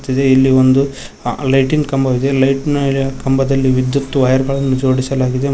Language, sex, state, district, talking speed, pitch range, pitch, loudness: Kannada, male, Karnataka, Koppal, 150 wpm, 130-135 Hz, 135 Hz, -14 LUFS